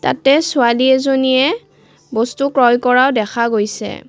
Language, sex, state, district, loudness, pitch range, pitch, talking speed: Assamese, female, Assam, Kamrup Metropolitan, -14 LUFS, 235-270 Hz, 260 Hz, 115 wpm